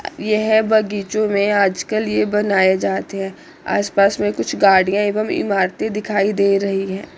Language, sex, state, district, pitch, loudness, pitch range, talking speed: Hindi, female, Chandigarh, Chandigarh, 200 Hz, -17 LUFS, 195-215 Hz, 160 wpm